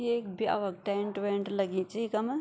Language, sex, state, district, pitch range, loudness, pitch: Garhwali, female, Uttarakhand, Tehri Garhwal, 200-225 Hz, -32 LUFS, 205 Hz